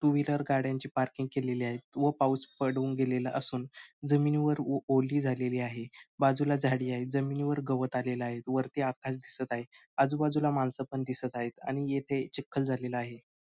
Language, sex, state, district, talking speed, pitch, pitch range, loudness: Marathi, male, Maharashtra, Sindhudurg, 165 wpm, 135 Hz, 125-140 Hz, -32 LUFS